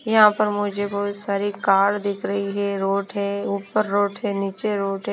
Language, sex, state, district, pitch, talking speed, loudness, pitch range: Hindi, female, Himachal Pradesh, Shimla, 200 Hz, 200 wpm, -22 LUFS, 200-205 Hz